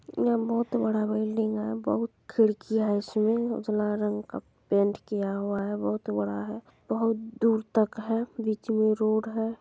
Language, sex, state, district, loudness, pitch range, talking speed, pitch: Hindi, female, Bihar, Supaul, -28 LUFS, 210-225 Hz, 170 wpm, 215 Hz